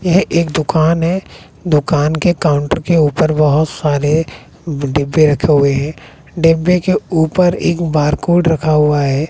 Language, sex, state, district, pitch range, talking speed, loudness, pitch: Hindi, male, Bihar, West Champaran, 150-170 Hz, 150 wpm, -14 LUFS, 155 Hz